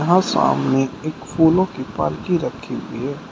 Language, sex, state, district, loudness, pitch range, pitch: Hindi, male, Uttar Pradesh, Shamli, -20 LUFS, 145-185 Hz, 160 Hz